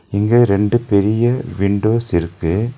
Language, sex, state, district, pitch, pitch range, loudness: Tamil, male, Tamil Nadu, Nilgiris, 110 Hz, 100-120 Hz, -16 LUFS